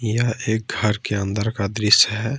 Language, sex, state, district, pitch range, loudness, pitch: Hindi, male, Jharkhand, Ranchi, 105-115 Hz, -20 LUFS, 110 Hz